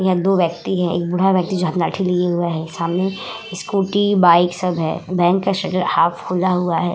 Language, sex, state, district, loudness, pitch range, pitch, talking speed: Hindi, female, Uttar Pradesh, Hamirpur, -18 LUFS, 175-190 Hz, 180 Hz, 235 wpm